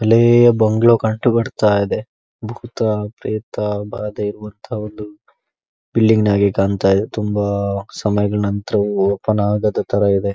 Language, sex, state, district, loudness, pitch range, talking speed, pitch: Kannada, male, Karnataka, Dakshina Kannada, -17 LUFS, 100-110 Hz, 120 wpm, 105 Hz